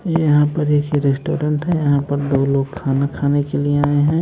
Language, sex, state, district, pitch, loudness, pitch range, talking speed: Hindi, male, Bihar, Kaimur, 145 Hz, -18 LUFS, 140-150 Hz, 215 wpm